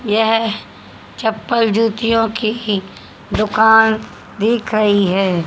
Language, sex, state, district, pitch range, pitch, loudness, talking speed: Hindi, female, Haryana, Charkhi Dadri, 210-225 Hz, 220 Hz, -16 LUFS, 90 wpm